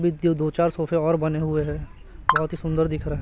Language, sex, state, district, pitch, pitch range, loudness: Hindi, male, Chhattisgarh, Raipur, 155 Hz, 150-165 Hz, -24 LUFS